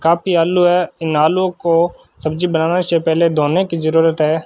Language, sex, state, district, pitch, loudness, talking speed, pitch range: Hindi, male, Rajasthan, Bikaner, 165 Hz, -15 LUFS, 190 wpm, 160-175 Hz